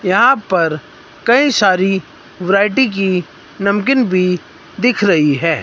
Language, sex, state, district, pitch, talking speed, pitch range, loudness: Hindi, male, Himachal Pradesh, Shimla, 195 Hz, 115 wpm, 180-235 Hz, -14 LUFS